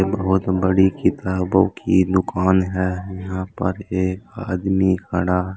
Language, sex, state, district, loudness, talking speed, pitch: Hindi, male, Uttar Pradesh, Saharanpur, -20 LUFS, 120 wpm, 95 Hz